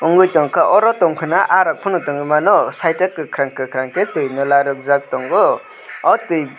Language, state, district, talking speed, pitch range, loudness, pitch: Kokborok, Tripura, West Tripura, 190 wpm, 140-185 Hz, -16 LUFS, 160 Hz